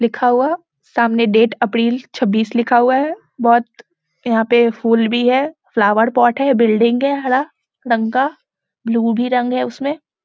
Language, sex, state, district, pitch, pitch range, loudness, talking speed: Hindi, female, Bihar, Muzaffarpur, 240 Hz, 230-260 Hz, -16 LUFS, 170 wpm